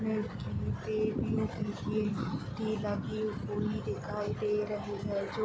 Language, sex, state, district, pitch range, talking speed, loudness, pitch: Hindi, female, Jharkhand, Sahebganj, 200-215 Hz, 90 wpm, -34 LUFS, 210 Hz